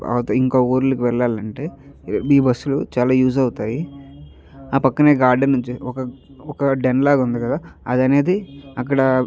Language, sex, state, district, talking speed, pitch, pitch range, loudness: Telugu, male, Andhra Pradesh, Chittoor, 155 wpm, 130 Hz, 125-140 Hz, -18 LUFS